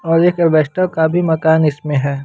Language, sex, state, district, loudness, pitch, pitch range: Hindi, male, Bihar, West Champaran, -14 LUFS, 160 Hz, 150-170 Hz